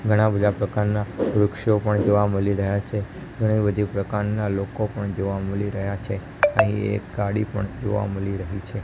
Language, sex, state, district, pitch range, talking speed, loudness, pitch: Gujarati, male, Gujarat, Gandhinagar, 100-105 Hz, 175 wpm, -23 LUFS, 105 Hz